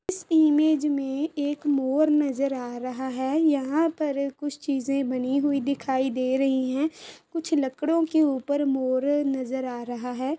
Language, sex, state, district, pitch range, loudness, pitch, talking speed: Hindi, female, Uttar Pradesh, Ghazipur, 265-300 Hz, -25 LUFS, 280 Hz, 175 wpm